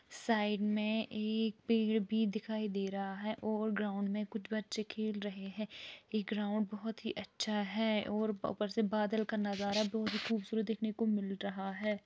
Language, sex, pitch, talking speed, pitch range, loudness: Urdu, female, 215 Hz, 180 wpm, 205-220 Hz, -36 LUFS